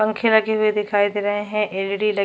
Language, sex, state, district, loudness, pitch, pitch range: Hindi, female, Chhattisgarh, Jashpur, -20 LUFS, 210 Hz, 205-215 Hz